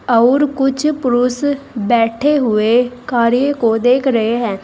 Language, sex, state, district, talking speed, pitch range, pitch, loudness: Hindi, female, Uttar Pradesh, Saharanpur, 130 wpm, 230-270 Hz, 245 Hz, -15 LUFS